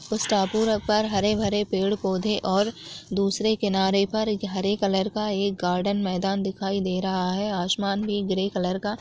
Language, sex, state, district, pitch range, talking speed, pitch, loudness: Chhattisgarhi, female, Chhattisgarh, Jashpur, 190-210 Hz, 175 wpm, 200 Hz, -25 LUFS